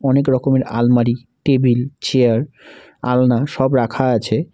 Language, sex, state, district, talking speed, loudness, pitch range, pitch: Bengali, male, West Bengal, Alipurduar, 120 wpm, -17 LUFS, 120-135 Hz, 125 Hz